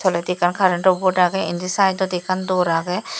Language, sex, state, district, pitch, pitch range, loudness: Chakma, female, Tripura, Dhalai, 185 Hz, 175-190 Hz, -19 LUFS